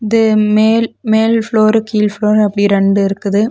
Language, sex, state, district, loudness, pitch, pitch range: Tamil, female, Tamil Nadu, Nilgiris, -12 LUFS, 215 Hz, 205-220 Hz